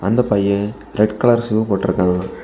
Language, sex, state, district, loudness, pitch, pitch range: Tamil, male, Tamil Nadu, Kanyakumari, -17 LUFS, 100 Hz, 100-110 Hz